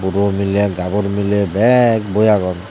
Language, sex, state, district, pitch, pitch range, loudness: Chakma, male, Tripura, Dhalai, 100 Hz, 95-105 Hz, -15 LUFS